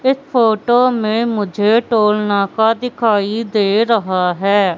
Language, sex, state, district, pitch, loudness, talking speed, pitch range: Hindi, female, Madhya Pradesh, Katni, 220 Hz, -15 LUFS, 125 wpm, 205-230 Hz